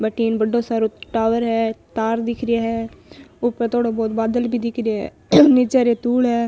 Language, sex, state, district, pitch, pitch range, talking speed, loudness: Marwari, female, Rajasthan, Nagaur, 230 Hz, 225-240 Hz, 185 wpm, -19 LUFS